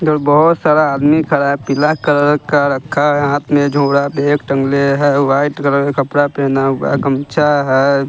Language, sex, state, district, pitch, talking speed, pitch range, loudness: Hindi, male, Bihar, West Champaran, 145 Hz, 170 wpm, 140-145 Hz, -13 LUFS